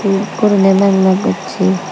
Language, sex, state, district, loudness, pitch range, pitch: Chakma, female, Tripura, Dhalai, -13 LUFS, 190-200 Hz, 195 Hz